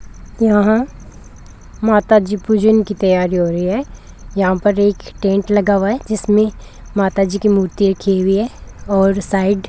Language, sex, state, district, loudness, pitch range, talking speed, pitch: Hindi, female, Rajasthan, Bikaner, -15 LUFS, 195-215 Hz, 165 wpm, 205 Hz